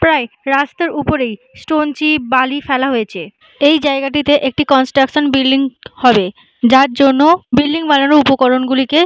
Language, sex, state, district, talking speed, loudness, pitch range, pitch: Bengali, female, West Bengal, Malda, 125 wpm, -13 LUFS, 260-295 Hz, 275 Hz